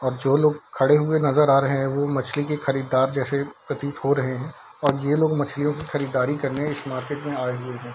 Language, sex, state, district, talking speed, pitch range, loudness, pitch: Hindi, male, Bihar, Darbhanga, 235 wpm, 135-145 Hz, -23 LUFS, 140 Hz